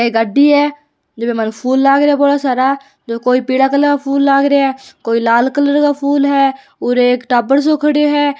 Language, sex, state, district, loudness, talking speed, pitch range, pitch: Hindi, female, Rajasthan, Churu, -13 LUFS, 220 wpm, 250-285 Hz, 275 Hz